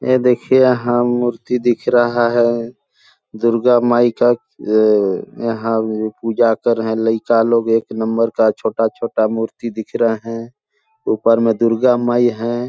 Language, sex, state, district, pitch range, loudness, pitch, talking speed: Hindi, male, Chhattisgarh, Balrampur, 115-120 Hz, -16 LUFS, 115 Hz, 160 wpm